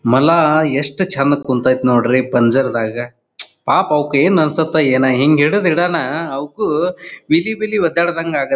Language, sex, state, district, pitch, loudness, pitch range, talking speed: Kannada, male, Karnataka, Dharwad, 145 Hz, -15 LUFS, 130-170 Hz, 125 wpm